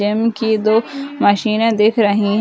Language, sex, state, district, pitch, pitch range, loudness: Hindi, female, Bihar, Muzaffarpur, 220 Hz, 210-230 Hz, -15 LUFS